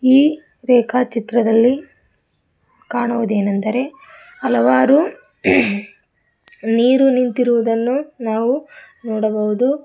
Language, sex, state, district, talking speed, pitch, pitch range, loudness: Kannada, female, Karnataka, Koppal, 55 wpm, 240 Hz, 225-270 Hz, -17 LUFS